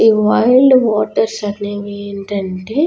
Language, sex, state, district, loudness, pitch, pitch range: Telugu, female, Telangana, Nalgonda, -15 LUFS, 210 Hz, 205-225 Hz